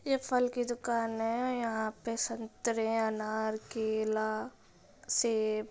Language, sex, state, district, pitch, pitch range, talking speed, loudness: Hindi, female, Bihar, Gopalganj, 225 Hz, 220-240 Hz, 125 wpm, -33 LUFS